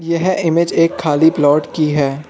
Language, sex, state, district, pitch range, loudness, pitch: Hindi, male, Arunachal Pradesh, Lower Dibang Valley, 150-170 Hz, -14 LUFS, 160 Hz